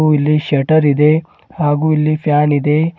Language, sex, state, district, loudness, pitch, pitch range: Kannada, male, Karnataka, Bidar, -14 LUFS, 150 Hz, 145-155 Hz